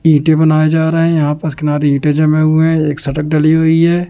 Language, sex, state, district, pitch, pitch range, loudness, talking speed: Hindi, male, Madhya Pradesh, Katni, 155 Hz, 150-160 Hz, -12 LUFS, 250 wpm